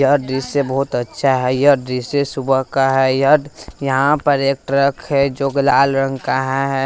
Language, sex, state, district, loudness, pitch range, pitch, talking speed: Hindi, male, Bihar, West Champaran, -16 LUFS, 135-140 Hz, 135 Hz, 200 wpm